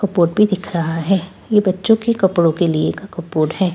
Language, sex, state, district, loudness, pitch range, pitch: Hindi, female, Bihar, Katihar, -17 LUFS, 170-200 Hz, 185 Hz